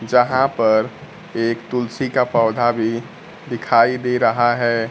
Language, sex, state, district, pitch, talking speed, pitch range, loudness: Hindi, male, Bihar, Kaimur, 120 Hz, 135 wpm, 115-125 Hz, -18 LUFS